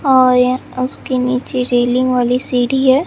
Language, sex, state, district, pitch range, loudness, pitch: Hindi, female, Bihar, Katihar, 250-260 Hz, -14 LUFS, 255 Hz